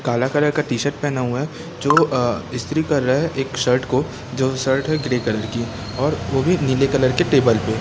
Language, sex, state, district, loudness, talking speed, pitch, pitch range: Hindi, male, Chhattisgarh, Raipur, -20 LUFS, 240 wpm, 130 Hz, 125-150 Hz